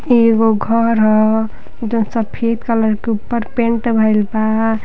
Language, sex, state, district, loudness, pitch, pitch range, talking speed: Bhojpuri, female, Uttar Pradesh, Deoria, -15 LUFS, 225 Hz, 220-230 Hz, 150 wpm